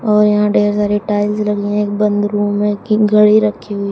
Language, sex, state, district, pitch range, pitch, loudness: Hindi, female, Uttar Pradesh, Shamli, 205-210 Hz, 210 Hz, -14 LUFS